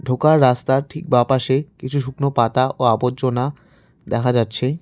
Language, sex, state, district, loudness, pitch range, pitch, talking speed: Bengali, male, West Bengal, Cooch Behar, -19 LUFS, 125-140 Hz, 130 Hz, 150 wpm